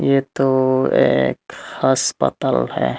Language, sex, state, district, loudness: Hindi, male, Tripura, Unakoti, -18 LUFS